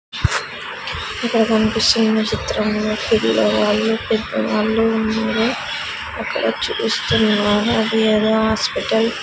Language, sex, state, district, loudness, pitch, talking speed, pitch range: Telugu, female, Andhra Pradesh, Sri Satya Sai, -18 LUFS, 220 Hz, 80 wpm, 215-225 Hz